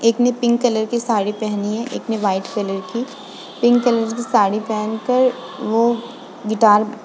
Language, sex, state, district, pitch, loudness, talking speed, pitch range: Hindi, female, Uttar Pradesh, Muzaffarnagar, 225 Hz, -19 LUFS, 185 wpm, 215-240 Hz